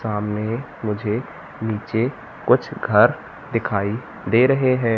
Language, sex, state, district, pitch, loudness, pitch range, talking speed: Hindi, male, Madhya Pradesh, Katni, 115 Hz, -21 LUFS, 105-125 Hz, 110 wpm